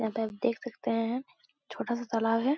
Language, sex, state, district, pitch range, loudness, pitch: Hindi, female, Bihar, Supaul, 225-245 Hz, -32 LUFS, 230 Hz